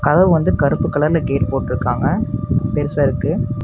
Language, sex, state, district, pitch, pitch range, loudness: Tamil, male, Tamil Nadu, Namakkal, 140 Hz, 125-150 Hz, -17 LUFS